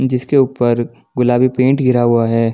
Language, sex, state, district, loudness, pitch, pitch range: Hindi, male, Chhattisgarh, Bilaspur, -14 LUFS, 125 Hz, 120-130 Hz